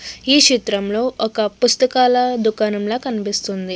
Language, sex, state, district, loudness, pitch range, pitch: Telugu, female, Andhra Pradesh, Krishna, -17 LUFS, 210-250 Hz, 225 Hz